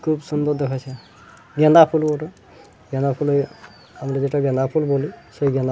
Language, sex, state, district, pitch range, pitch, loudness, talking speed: Bengali, male, West Bengal, Purulia, 135-150 Hz, 140 Hz, -20 LUFS, 105 wpm